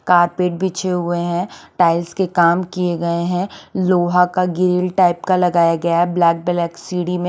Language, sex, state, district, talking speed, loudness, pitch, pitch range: Hindi, female, Chandigarh, Chandigarh, 180 wpm, -17 LUFS, 180 Hz, 175-180 Hz